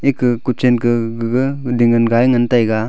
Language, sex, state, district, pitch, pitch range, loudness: Wancho, male, Arunachal Pradesh, Longding, 120 Hz, 115-125 Hz, -15 LUFS